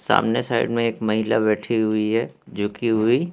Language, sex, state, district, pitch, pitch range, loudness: Hindi, male, Madhya Pradesh, Katni, 110 Hz, 110-115 Hz, -22 LUFS